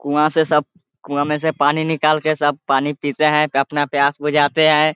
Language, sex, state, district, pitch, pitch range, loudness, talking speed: Hindi, male, Bihar, Muzaffarpur, 150 Hz, 145-155 Hz, -17 LUFS, 205 wpm